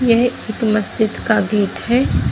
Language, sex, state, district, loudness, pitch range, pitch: Hindi, female, Bihar, Kishanganj, -17 LUFS, 210-235 Hz, 220 Hz